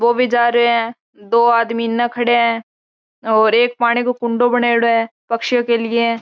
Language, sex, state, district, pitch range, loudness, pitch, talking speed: Marwari, female, Rajasthan, Churu, 230-240 Hz, -16 LUFS, 235 Hz, 195 wpm